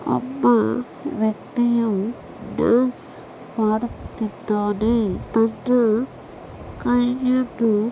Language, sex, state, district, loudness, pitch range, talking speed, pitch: Kannada, female, Karnataka, Bellary, -21 LUFS, 215-245 Hz, 45 wpm, 230 Hz